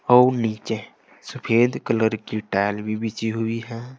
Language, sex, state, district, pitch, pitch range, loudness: Hindi, male, Uttar Pradesh, Saharanpur, 115 Hz, 110-120 Hz, -22 LUFS